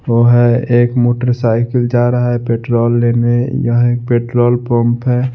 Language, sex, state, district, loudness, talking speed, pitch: Hindi, male, Bihar, Kaimur, -13 LUFS, 170 wpm, 120 Hz